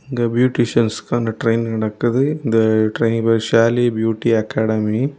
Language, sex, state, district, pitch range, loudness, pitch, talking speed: Tamil, male, Tamil Nadu, Kanyakumari, 110-120 Hz, -17 LUFS, 115 Hz, 125 wpm